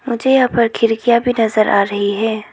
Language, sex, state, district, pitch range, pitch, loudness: Hindi, female, Arunachal Pradesh, Lower Dibang Valley, 215-240 Hz, 225 Hz, -15 LUFS